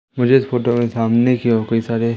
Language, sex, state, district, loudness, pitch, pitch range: Hindi, male, Madhya Pradesh, Umaria, -16 LUFS, 120 Hz, 115-125 Hz